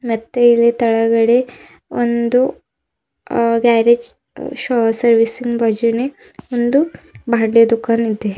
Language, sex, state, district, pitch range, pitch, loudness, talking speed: Kannada, female, Karnataka, Bidar, 230-240 Hz, 235 Hz, -15 LUFS, 55 wpm